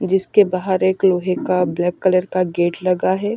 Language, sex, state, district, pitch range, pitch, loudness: Hindi, female, Delhi, New Delhi, 180-190 Hz, 185 Hz, -18 LUFS